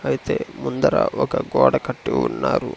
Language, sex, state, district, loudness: Telugu, male, Andhra Pradesh, Sri Satya Sai, -21 LUFS